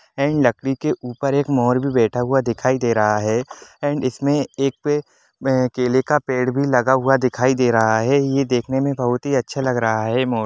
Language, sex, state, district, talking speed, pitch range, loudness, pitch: Hindi, male, Jharkhand, Sahebganj, 220 wpm, 120-140 Hz, -19 LUFS, 130 Hz